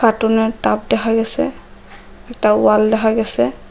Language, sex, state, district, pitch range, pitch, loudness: Bengali, female, Assam, Hailakandi, 215-225 Hz, 220 Hz, -16 LUFS